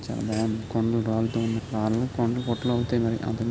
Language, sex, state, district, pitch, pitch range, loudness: Telugu, male, Andhra Pradesh, Chittoor, 115 Hz, 110-120 Hz, -26 LUFS